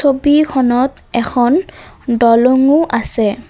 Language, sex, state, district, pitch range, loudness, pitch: Assamese, female, Assam, Kamrup Metropolitan, 240-285 Hz, -13 LUFS, 255 Hz